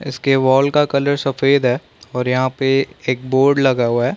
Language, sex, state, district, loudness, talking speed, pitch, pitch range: Hindi, male, Chhattisgarh, Korba, -16 LUFS, 200 wpm, 135 Hz, 125-140 Hz